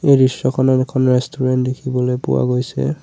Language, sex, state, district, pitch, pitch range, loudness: Assamese, male, Assam, Sonitpur, 130 Hz, 125-130 Hz, -17 LUFS